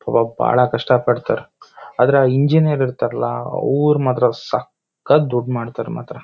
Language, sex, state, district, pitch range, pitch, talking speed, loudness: Kannada, male, Karnataka, Shimoga, 120-140 Hz, 125 Hz, 145 wpm, -18 LUFS